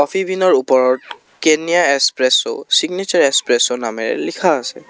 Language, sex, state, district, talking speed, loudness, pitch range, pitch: Assamese, male, Assam, Kamrup Metropolitan, 100 wpm, -15 LUFS, 130-190 Hz, 145 Hz